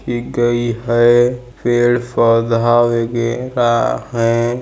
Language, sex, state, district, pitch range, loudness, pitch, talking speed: Hindi, male, Chhattisgarh, Balrampur, 115-120 Hz, -15 LUFS, 120 Hz, 105 wpm